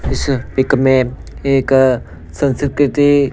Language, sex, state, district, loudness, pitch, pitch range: Hindi, male, Punjab, Pathankot, -15 LUFS, 135 Hz, 125-140 Hz